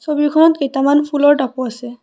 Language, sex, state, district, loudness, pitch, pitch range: Assamese, female, Assam, Kamrup Metropolitan, -15 LUFS, 285 Hz, 260-295 Hz